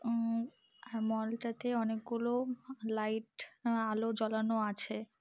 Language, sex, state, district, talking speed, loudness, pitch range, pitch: Bengali, female, West Bengal, Malda, 105 wpm, -36 LUFS, 220-240 Hz, 230 Hz